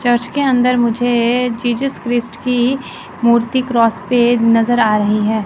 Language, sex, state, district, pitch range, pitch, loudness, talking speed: Hindi, female, Chandigarh, Chandigarh, 230-250 Hz, 240 Hz, -15 LUFS, 155 wpm